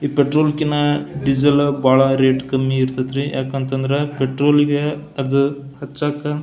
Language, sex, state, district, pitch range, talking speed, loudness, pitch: Kannada, male, Karnataka, Belgaum, 135-145 Hz, 120 wpm, -18 LUFS, 140 Hz